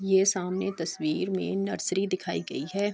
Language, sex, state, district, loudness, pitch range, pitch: Urdu, female, Andhra Pradesh, Anantapur, -29 LUFS, 180-195 Hz, 190 Hz